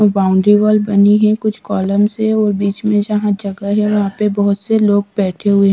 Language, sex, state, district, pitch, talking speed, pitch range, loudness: Hindi, female, Bihar, Katihar, 205 Hz, 210 wpm, 200-210 Hz, -14 LUFS